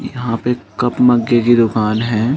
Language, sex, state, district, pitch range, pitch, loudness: Hindi, male, Uttar Pradesh, Muzaffarnagar, 115-125 Hz, 120 Hz, -15 LUFS